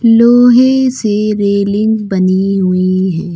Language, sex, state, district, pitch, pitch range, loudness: Hindi, female, Uttar Pradesh, Lucknow, 205 Hz, 190-230 Hz, -11 LUFS